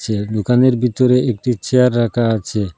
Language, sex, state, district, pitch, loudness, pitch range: Bengali, male, Assam, Hailakandi, 120 Hz, -16 LUFS, 110-125 Hz